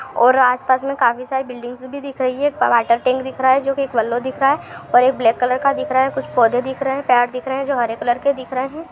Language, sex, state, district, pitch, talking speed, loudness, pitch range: Hindi, female, Chhattisgarh, Sukma, 260 Hz, 315 wpm, -18 LUFS, 245-275 Hz